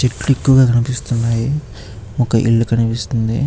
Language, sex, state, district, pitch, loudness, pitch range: Telugu, male, Andhra Pradesh, Chittoor, 115 Hz, -16 LUFS, 115-125 Hz